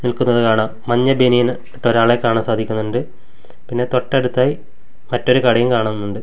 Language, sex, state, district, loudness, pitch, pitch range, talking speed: Malayalam, male, Kerala, Kasaragod, -16 LUFS, 120 Hz, 110-125 Hz, 125 wpm